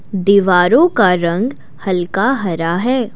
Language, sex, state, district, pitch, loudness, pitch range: Hindi, female, Assam, Kamrup Metropolitan, 190 Hz, -14 LUFS, 175-230 Hz